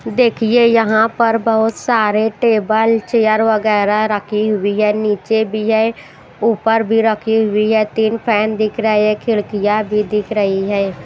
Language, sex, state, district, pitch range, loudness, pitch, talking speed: Hindi, female, Himachal Pradesh, Shimla, 210-225 Hz, -15 LUFS, 220 Hz, 155 wpm